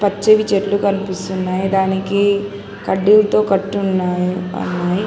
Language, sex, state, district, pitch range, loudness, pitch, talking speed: Telugu, female, Telangana, Hyderabad, 185-200 Hz, -16 LUFS, 195 Hz, 85 wpm